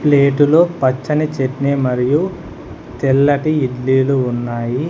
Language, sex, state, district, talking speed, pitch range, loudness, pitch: Telugu, male, Telangana, Hyderabad, 85 wpm, 130-150 Hz, -16 LUFS, 140 Hz